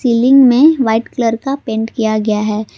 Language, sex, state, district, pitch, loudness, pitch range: Hindi, female, Jharkhand, Palamu, 230 Hz, -13 LUFS, 220-260 Hz